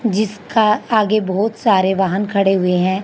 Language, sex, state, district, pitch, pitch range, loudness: Hindi, female, Haryana, Charkhi Dadri, 205 Hz, 190-215 Hz, -16 LUFS